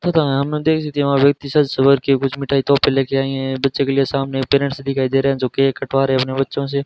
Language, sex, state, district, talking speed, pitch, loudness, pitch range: Hindi, male, Rajasthan, Bikaner, 210 wpm, 135 Hz, -17 LUFS, 135-140 Hz